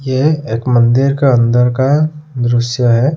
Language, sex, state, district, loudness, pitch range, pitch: Hindi, male, Odisha, Khordha, -13 LUFS, 120-140 Hz, 130 Hz